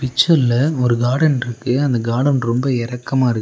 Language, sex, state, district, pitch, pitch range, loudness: Tamil, male, Tamil Nadu, Nilgiris, 125 Hz, 120-135 Hz, -17 LUFS